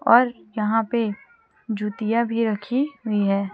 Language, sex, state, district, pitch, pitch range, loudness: Hindi, female, Chhattisgarh, Raipur, 225 Hz, 210-240 Hz, -23 LUFS